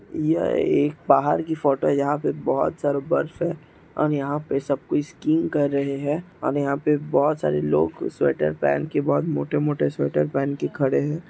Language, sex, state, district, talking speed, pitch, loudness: Hindi, male, Chhattisgarh, Raigarh, 195 wpm, 140 Hz, -23 LUFS